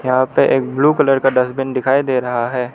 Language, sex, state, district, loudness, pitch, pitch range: Hindi, male, Arunachal Pradesh, Lower Dibang Valley, -15 LUFS, 130 Hz, 125-135 Hz